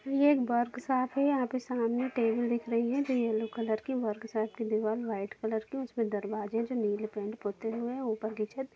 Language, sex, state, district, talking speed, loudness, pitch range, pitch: Hindi, female, Jharkhand, Jamtara, 225 wpm, -32 LUFS, 220-255 Hz, 230 Hz